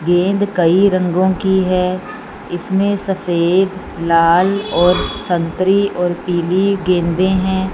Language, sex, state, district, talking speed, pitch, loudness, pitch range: Hindi, female, Punjab, Fazilka, 110 wpm, 185 Hz, -15 LUFS, 175-195 Hz